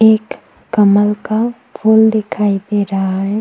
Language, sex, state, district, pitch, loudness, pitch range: Hindi, female, Chhattisgarh, Kabirdham, 210 Hz, -14 LUFS, 200-220 Hz